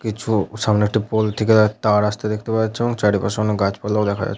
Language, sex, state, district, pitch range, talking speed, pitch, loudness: Bengali, male, West Bengal, Paschim Medinipur, 105-110 Hz, 260 wpm, 105 Hz, -19 LUFS